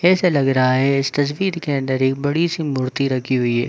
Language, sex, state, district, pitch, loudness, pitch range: Hindi, male, Jharkhand, Sahebganj, 140 Hz, -19 LUFS, 130-155 Hz